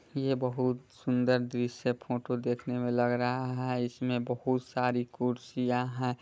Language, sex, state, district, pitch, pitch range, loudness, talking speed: Hindi, male, Bihar, Muzaffarpur, 125 Hz, 120-125 Hz, -31 LUFS, 145 wpm